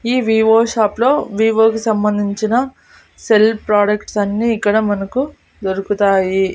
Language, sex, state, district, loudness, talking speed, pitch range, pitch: Telugu, female, Andhra Pradesh, Annamaya, -15 LUFS, 120 wpm, 205-225 Hz, 215 Hz